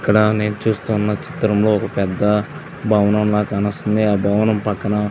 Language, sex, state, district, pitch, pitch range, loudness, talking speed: Telugu, male, Andhra Pradesh, Visakhapatnam, 105 Hz, 105-110 Hz, -18 LUFS, 140 wpm